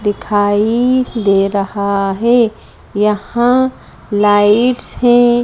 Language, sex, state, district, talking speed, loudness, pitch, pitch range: Hindi, female, Madhya Pradesh, Bhopal, 75 wpm, -13 LUFS, 210 Hz, 205-240 Hz